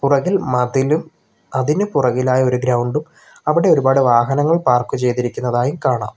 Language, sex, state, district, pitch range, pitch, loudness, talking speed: Malayalam, male, Kerala, Kollam, 125-145 Hz, 130 Hz, -17 LUFS, 115 wpm